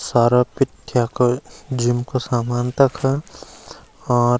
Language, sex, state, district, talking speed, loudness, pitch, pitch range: Garhwali, male, Uttarakhand, Uttarkashi, 110 wpm, -20 LUFS, 125 Hz, 120-135 Hz